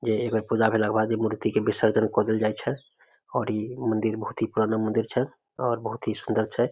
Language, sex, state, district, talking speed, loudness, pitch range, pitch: Maithili, male, Bihar, Samastipur, 240 wpm, -26 LUFS, 110-115 Hz, 110 Hz